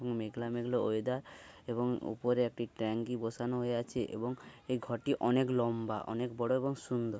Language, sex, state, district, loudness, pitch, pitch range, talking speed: Bengali, male, West Bengal, Paschim Medinipur, -35 LUFS, 120 Hz, 115-125 Hz, 160 wpm